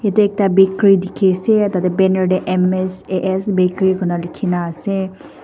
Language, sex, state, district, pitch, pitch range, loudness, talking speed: Nagamese, female, Nagaland, Dimapur, 190 Hz, 185-195 Hz, -16 LUFS, 145 wpm